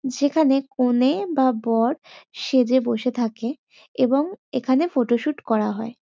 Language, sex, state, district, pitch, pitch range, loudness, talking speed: Bengali, female, West Bengal, North 24 Parganas, 255 Hz, 240-280 Hz, -22 LUFS, 120 wpm